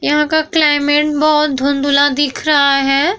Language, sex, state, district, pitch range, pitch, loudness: Hindi, female, Bihar, Vaishali, 280-300 Hz, 290 Hz, -13 LUFS